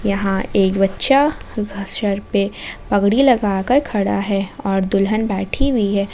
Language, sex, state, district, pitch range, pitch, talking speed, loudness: Hindi, female, Jharkhand, Ranchi, 195-220 Hz, 200 Hz, 135 wpm, -18 LUFS